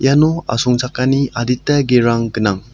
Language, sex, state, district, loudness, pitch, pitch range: Garo, male, Meghalaya, South Garo Hills, -15 LUFS, 125 Hz, 115-135 Hz